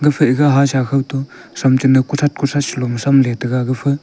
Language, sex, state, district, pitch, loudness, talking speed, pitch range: Wancho, male, Arunachal Pradesh, Longding, 135 Hz, -15 LUFS, 225 wpm, 130-145 Hz